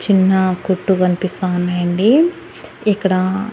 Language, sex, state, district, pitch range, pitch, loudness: Telugu, female, Andhra Pradesh, Annamaya, 185-210 Hz, 190 Hz, -16 LUFS